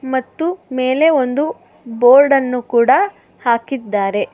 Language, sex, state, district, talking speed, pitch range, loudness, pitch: Kannada, female, Karnataka, Bangalore, 85 wpm, 245-285 Hz, -15 LUFS, 260 Hz